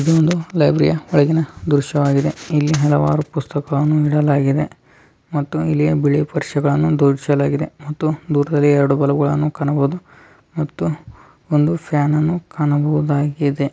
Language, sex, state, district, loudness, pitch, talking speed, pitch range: Kannada, male, Karnataka, Dharwad, -17 LUFS, 150 Hz, 80 wpm, 145-155 Hz